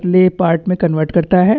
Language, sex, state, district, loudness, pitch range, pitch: Hindi, male, Chhattisgarh, Bastar, -14 LUFS, 170-185 Hz, 180 Hz